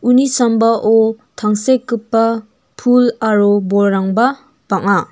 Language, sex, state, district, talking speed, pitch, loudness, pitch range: Garo, female, Meghalaya, North Garo Hills, 80 wpm, 225 Hz, -14 LUFS, 210-245 Hz